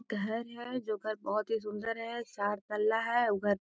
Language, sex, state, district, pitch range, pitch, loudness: Magahi, female, Bihar, Gaya, 210-235 Hz, 215 Hz, -34 LUFS